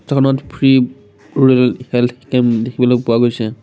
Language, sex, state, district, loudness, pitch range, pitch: Assamese, male, Assam, Kamrup Metropolitan, -14 LUFS, 120-130 Hz, 125 Hz